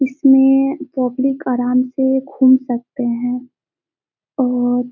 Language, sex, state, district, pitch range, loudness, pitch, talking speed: Hindi, female, Bihar, Gopalganj, 245-270 Hz, -16 LUFS, 260 Hz, 95 wpm